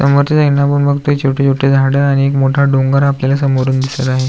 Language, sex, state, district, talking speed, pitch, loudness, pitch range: Marathi, male, Maharashtra, Aurangabad, 210 wpm, 140 Hz, -12 LUFS, 135-140 Hz